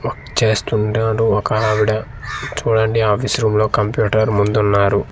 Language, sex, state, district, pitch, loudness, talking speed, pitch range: Telugu, male, Andhra Pradesh, Manyam, 110 Hz, -17 LUFS, 115 wpm, 105-110 Hz